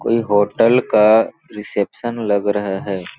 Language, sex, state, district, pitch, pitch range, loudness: Hindi, male, Chhattisgarh, Balrampur, 105 Hz, 100-115 Hz, -17 LUFS